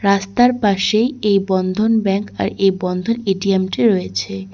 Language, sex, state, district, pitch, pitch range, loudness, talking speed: Bengali, female, West Bengal, Cooch Behar, 195 Hz, 185-215 Hz, -17 LUFS, 145 wpm